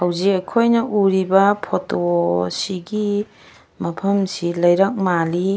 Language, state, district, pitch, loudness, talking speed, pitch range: Manipuri, Manipur, Imphal West, 190 Hz, -19 LUFS, 95 wpm, 175-200 Hz